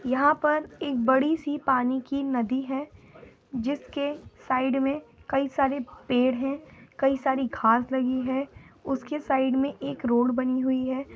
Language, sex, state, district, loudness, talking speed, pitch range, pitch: Angika, female, Bihar, Madhepura, -26 LUFS, 150 wpm, 260-280 Hz, 270 Hz